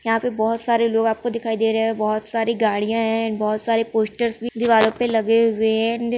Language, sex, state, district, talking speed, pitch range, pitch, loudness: Hindi, female, Andhra Pradesh, Krishna, 225 wpm, 220-230 Hz, 225 Hz, -20 LUFS